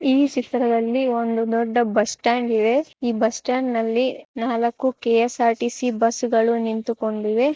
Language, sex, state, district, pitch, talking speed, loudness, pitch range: Kannada, female, Karnataka, Shimoga, 235 Hz, 125 wpm, -21 LUFS, 230-250 Hz